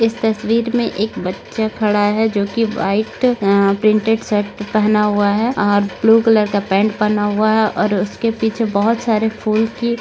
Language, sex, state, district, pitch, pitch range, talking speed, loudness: Hindi, female, Maharashtra, Nagpur, 215 Hz, 205-225 Hz, 185 wpm, -16 LUFS